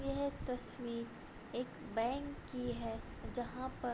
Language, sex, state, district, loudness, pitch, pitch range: Hindi, female, Uttar Pradesh, Budaun, -42 LUFS, 245 Hz, 225-260 Hz